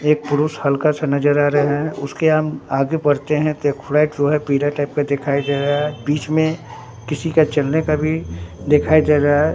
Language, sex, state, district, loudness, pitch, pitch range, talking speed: Hindi, male, Bihar, Katihar, -18 LUFS, 145 Hz, 140-155 Hz, 225 wpm